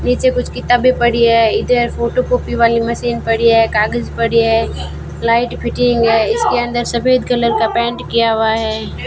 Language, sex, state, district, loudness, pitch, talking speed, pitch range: Hindi, female, Rajasthan, Bikaner, -14 LUFS, 235 Hz, 170 wpm, 225-245 Hz